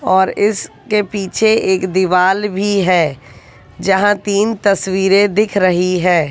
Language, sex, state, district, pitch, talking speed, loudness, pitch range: Hindi, female, Haryana, Jhajjar, 190 Hz, 125 wpm, -14 LUFS, 185-205 Hz